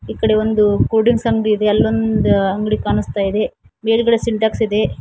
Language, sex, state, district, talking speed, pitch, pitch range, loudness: Kannada, female, Karnataka, Koppal, 165 wpm, 220 Hz, 210-225 Hz, -16 LUFS